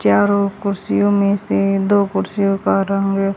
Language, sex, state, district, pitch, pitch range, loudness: Hindi, female, Haryana, Rohtak, 195 Hz, 195-200 Hz, -17 LUFS